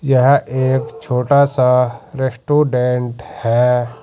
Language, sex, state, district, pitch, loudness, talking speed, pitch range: Hindi, male, Uttar Pradesh, Saharanpur, 130 Hz, -16 LUFS, 90 wpm, 125-140 Hz